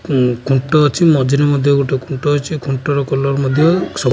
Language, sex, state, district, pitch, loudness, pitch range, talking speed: Odia, male, Odisha, Khordha, 140 Hz, -15 LUFS, 135-150 Hz, 175 wpm